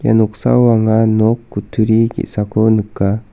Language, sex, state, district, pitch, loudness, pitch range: Garo, male, Meghalaya, South Garo Hills, 110 Hz, -14 LUFS, 105-115 Hz